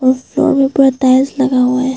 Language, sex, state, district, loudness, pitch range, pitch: Hindi, female, Arunachal Pradesh, Papum Pare, -12 LUFS, 255-270 Hz, 260 Hz